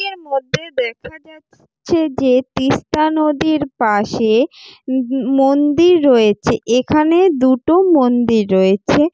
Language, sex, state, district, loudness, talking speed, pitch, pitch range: Bengali, female, West Bengal, Jalpaiguri, -15 LUFS, 105 wpm, 285 Hz, 255-325 Hz